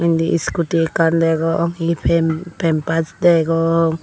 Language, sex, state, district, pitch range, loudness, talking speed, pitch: Chakma, female, Tripura, Unakoti, 165-170 Hz, -17 LUFS, 120 wpm, 165 Hz